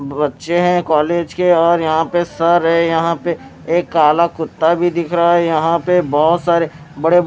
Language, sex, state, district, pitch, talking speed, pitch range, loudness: Hindi, male, Maharashtra, Mumbai Suburban, 170 Hz, 190 wpm, 160-175 Hz, -15 LUFS